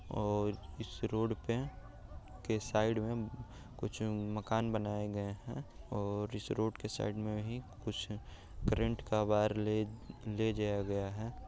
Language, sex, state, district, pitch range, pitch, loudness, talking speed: Hindi, male, Bihar, Araria, 105-115 Hz, 110 Hz, -37 LUFS, 145 wpm